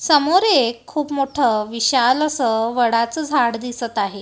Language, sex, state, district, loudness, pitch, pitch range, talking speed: Marathi, female, Maharashtra, Gondia, -18 LUFS, 245 Hz, 230-290 Hz, 140 wpm